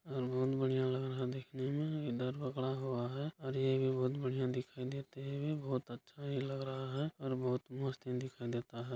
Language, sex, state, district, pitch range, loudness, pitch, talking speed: Hindi, male, Bihar, Bhagalpur, 130-135 Hz, -39 LUFS, 130 Hz, 215 wpm